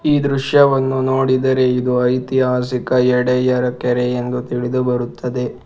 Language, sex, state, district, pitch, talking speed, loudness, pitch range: Kannada, male, Karnataka, Bangalore, 125 Hz, 95 wpm, -17 LUFS, 125-130 Hz